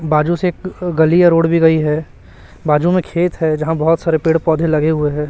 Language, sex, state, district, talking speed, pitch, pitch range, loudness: Hindi, male, Chhattisgarh, Raipur, 240 wpm, 160 Hz, 150-170 Hz, -15 LUFS